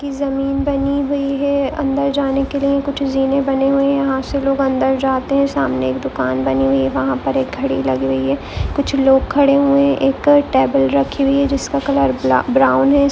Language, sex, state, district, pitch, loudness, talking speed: Hindi, female, Goa, North and South Goa, 270 Hz, -16 LUFS, 210 wpm